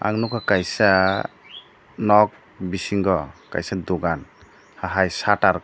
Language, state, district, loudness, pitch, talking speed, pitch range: Kokborok, Tripura, Dhalai, -21 LUFS, 95 Hz, 95 wpm, 90-105 Hz